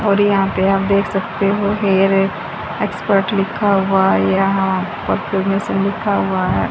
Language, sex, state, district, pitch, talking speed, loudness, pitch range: Hindi, female, Haryana, Rohtak, 195 Hz, 160 wpm, -16 LUFS, 195-200 Hz